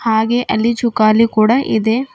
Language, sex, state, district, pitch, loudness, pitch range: Kannada, female, Karnataka, Bidar, 230 Hz, -14 LUFS, 220-240 Hz